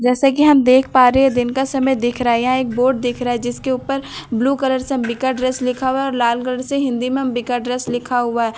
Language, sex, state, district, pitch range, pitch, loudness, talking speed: Hindi, female, Bihar, Katihar, 245-265 Hz, 255 Hz, -17 LUFS, 295 wpm